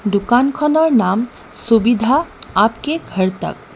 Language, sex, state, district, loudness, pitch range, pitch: Assamese, female, Assam, Kamrup Metropolitan, -16 LUFS, 220-295 Hz, 240 Hz